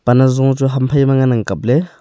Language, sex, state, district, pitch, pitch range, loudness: Wancho, male, Arunachal Pradesh, Longding, 130 Hz, 125-135 Hz, -14 LUFS